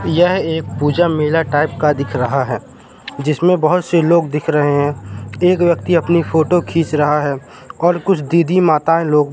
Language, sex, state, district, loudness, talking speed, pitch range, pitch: Hindi, male, Madhya Pradesh, Katni, -15 LUFS, 175 wpm, 145-170 Hz, 155 Hz